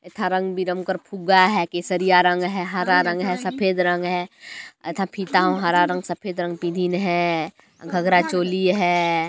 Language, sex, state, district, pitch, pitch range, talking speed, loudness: Chhattisgarhi, male, Chhattisgarh, Jashpur, 180 Hz, 175-185 Hz, 170 wpm, -21 LUFS